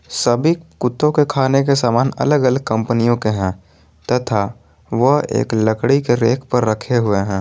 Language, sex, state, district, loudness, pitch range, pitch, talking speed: Hindi, male, Jharkhand, Garhwa, -17 LUFS, 110-135 Hz, 120 Hz, 170 wpm